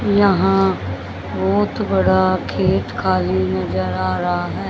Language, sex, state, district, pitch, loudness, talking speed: Hindi, female, Haryana, Jhajjar, 95 Hz, -18 LUFS, 115 wpm